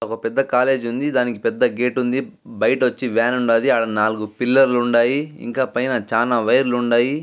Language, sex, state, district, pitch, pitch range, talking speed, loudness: Telugu, male, Andhra Pradesh, Guntur, 125 Hz, 115-130 Hz, 190 wpm, -19 LUFS